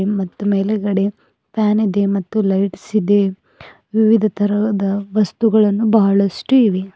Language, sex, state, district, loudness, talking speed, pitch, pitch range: Kannada, female, Karnataka, Bidar, -16 LUFS, 110 wpm, 205 Hz, 195-215 Hz